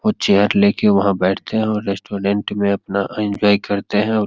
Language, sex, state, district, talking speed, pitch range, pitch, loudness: Hindi, male, Bihar, Begusarai, 210 wpm, 100-105 Hz, 100 Hz, -17 LUFS